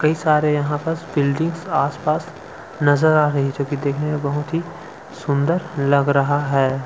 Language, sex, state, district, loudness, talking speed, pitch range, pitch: Hindi, male, Chhattisgarh, Sukma, -19 LUFS, 165 wpm, 140-155 Hz, 145 Hz